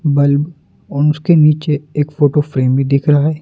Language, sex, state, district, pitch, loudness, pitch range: Hindi, male, Madhya Pradesh, Dhar, 150 Hz, -14 LUFS, 145-150 Hz